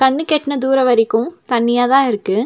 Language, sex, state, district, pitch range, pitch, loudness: Tamil, female, Tamil Nadu, Nilgiris, 230-270 Hz, 255 Hz, -15 LUFS